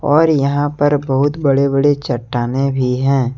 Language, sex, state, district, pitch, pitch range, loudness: Hindi, male, Jharkhand, Deoghar, 140 Hz, 130-145 Hz, -15 LUFS